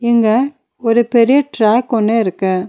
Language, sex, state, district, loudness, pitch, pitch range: Tamil, female, Tamil Nadu, Nilgiris, -14 LUFS, 230 Hz, 215-245 Hz